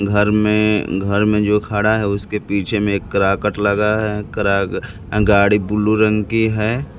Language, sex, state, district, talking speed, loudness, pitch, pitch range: Hindi, male, Bihar, Kaimur, 170 wpm, -17 LUFS, 105 Hz, 100-105 Hz